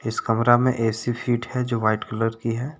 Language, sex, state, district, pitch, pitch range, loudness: Hindi, male, Jharkhand, Deoghar, 115 Hz, 115-125 Hz, -23 LUFS